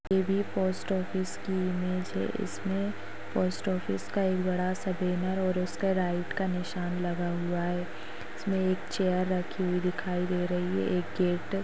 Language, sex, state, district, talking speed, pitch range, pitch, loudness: Hindi, female, Maharashtra, Sindhudurg, 180 wpm, 175-190 Hz, 180 Hz, -30 LUFS